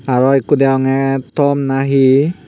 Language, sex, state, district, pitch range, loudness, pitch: Chakma, male, Tripura, Unakoti, 135-140 Hz, -13 LUFS, 135 Hz